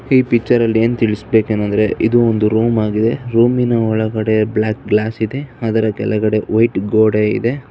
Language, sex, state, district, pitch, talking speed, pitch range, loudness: Kannada, male, Karnataka, Bangalore, 110 Hz, 155 wpm, 110-120 Hz, -15 LUFS